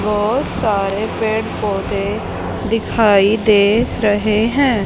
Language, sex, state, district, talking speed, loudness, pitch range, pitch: Hindi, female, Haryana, Charkhi Dadri, 100 wpm, -16 LUFS, 205-225 Hz, 215 Hz